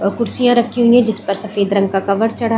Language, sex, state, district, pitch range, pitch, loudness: Hindi, female, Chhattisgarh, Bilaspur, 200-235 Hz, 220 Hz, -15 LUFS